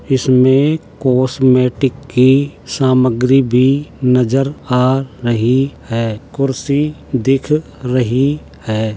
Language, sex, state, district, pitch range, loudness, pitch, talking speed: Hindi, male, Uttar Pradesh, Jalaun, 125-135 Hz, -14 LUFS, 130 Hz, 85 wpm